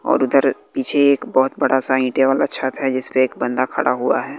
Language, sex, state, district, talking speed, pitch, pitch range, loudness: Hindi, male, Bihar, West Champaran, 230 wpm, 130 Hz, 130-135 Hz, -18 LUFS